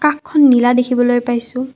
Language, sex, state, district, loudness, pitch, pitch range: Assamese, female, Assam, Kamrup Metropolitan, -14 LUFS, 250 Hz, 245-285 Hz